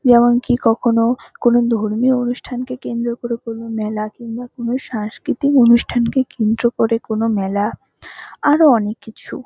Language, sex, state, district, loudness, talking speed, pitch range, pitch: Bengali, female, West Bengal, North 24 Parganas, -17 LUFS, 140 wpm, 225-245 Hz, 235 Hz